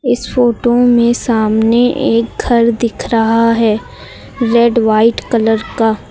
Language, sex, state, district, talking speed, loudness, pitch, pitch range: Hindi, female, Uttar Pradesh, Lucknow, 130 wpm, -12 LUFS, 230 Hz, 225-240 Hz